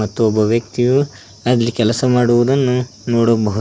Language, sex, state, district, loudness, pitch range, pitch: Kannada, male, Karnataka, Koppal, -16 LUFS, 110-125 Hz, 120 Hz